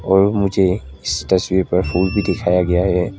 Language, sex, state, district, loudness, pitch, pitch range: Hindi, male, Arunachal Pradesh, Lower Dibang Valley, -17 LUFS, 95 Hz, 90-95 Hz